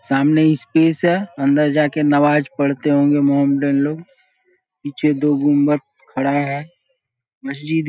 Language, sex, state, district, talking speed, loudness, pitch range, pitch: Hindi, male, Bihar, Saharsa, 135 wpm, -17 LUFS, 140-155 Hz, 145 Hz